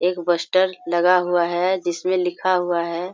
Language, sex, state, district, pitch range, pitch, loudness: Hindi, female, Jharkhand, Sahebganj, 175-185 Hz, 180 Hz, -20 LUFS